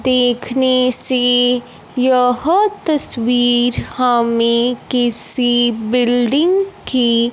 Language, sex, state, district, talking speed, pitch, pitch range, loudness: Hindi, female, Punjab, Fazilka, 65 wpm, 245 Hz, 240-255 Hz, -14 LUFS